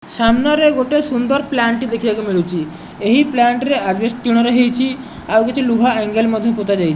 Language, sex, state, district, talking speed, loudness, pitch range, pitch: Odia, male, Odisha, Nuapada, 155 wpm, -16 LUFS, 220-260 Hz, 235 Hz